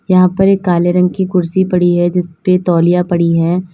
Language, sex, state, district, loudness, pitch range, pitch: Hindi, female, Uttar Pradesh, Lalitpur, -13 LUFS, 175-185 Hz, 180 Hz